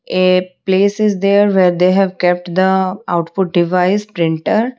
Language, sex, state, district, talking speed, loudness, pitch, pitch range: English, female, Odisha, Malkangiri, 150 wpm, -14 LUFS, 185 Hz, 180-200 Hz